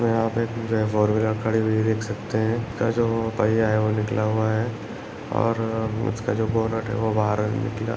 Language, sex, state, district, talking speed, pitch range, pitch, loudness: Hindi, male, Uttar Pradesh, Deoria, 205 wpm, 110-115 Hz, 110 Hz, -23 LUFS